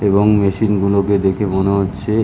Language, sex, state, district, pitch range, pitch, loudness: Bengali, male, West Bengal, Kolkata, 100-105 Hz, 100 Hz, -15 LUFS